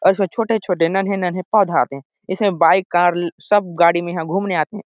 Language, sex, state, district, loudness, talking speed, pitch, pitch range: Hindi, male, Chhattisgarh, Sarguja, -18 LUFS, 200 wpm, 180 Hz, 170-195 Hz